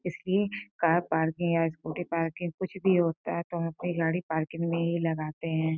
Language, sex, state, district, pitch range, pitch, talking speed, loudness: Hindi, female, Uttar Pradesh, Gorakhpur, 160-175 Hz, 170 Hz, 195 wpm, -29 LUFS